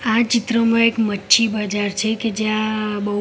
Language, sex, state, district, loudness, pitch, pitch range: Gujarati, female, Gujarat, Gandhinagar, -18 LUFS, 215 Hz, 210-230 Hz